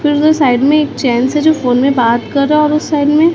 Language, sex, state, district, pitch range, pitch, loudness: Hindi, female, Chhattisgarh, Raipur, 255-300 Hz, 290 Hz, -12 LUFS